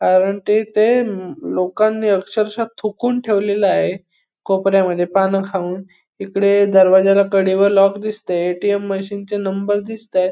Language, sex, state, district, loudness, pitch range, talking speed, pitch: Marathi, male, Goa, North and South Goa, -17 LUFS, 190-210 Hz, 130 wpm, 195 Hz